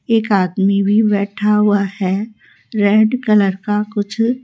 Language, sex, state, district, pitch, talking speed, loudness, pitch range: Hindi, female, Rajasthan, Jaipur, 210 Hz, 135 wpm, -16 LUFS, 200-220 Hz